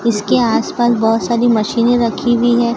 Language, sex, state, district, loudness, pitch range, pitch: Hindi, female, Maharashtra, Gondia, -14 LUFS, 230-240 Hz, 235 Hz